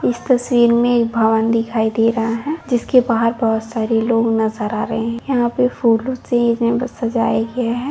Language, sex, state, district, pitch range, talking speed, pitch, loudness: Hindi, female, Bihar, Begusarai, 225-245 Hz, 195 wpm, 230 Hz, -17 LUFS